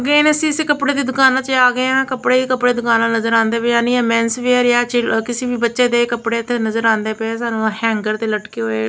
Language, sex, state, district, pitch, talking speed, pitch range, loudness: Punjabi, female, Punjab, Kapurthala, 240 Hz, 255 wpm, 225-255 Hz, -16 LUFS